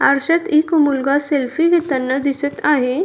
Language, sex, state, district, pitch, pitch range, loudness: Marathi, female, Maharashtra, Dhule, 285 Hz, 275-325 Hz, -17 LUFS